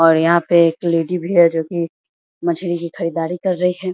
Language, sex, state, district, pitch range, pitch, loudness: Hindi, female, Bihar, Samastipur, 165-175 Hz, 170 Hz, -17 LUFS